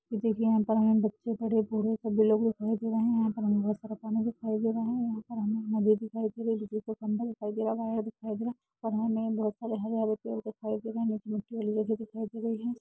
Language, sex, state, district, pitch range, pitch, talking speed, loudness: Hindi, female, Uttar Pradesh, Jalaun, 215-225 Hz, 220 Hz, 175 wpm, -31 LUFS